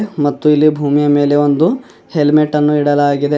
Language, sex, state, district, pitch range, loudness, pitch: Kannada, male, Karnataka, Bidar, 145-150 Hz, -13 LUFS, 150 Hz